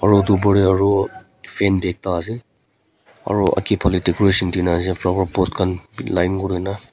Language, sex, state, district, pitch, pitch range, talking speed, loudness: Nagamese, female, Nagaland, Kohima, 95 Hz, 90-100 Hz, 145 wpm, -18 LUFS